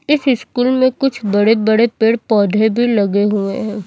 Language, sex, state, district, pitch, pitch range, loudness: Hindi, female, Chhattisgarh, Raipur, 220 Hz, 210-250 Hz, -15 LUFS